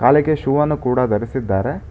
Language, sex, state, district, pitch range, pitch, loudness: Kannada, male, Karnataka, Bangalore, 120-150 Hz, 130 Hz, -18 LUFS